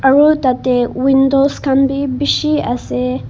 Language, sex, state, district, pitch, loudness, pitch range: Nagamese, female, Nagaland, Kohima, 270 Hz, -14 LUFS, 250-280 Hz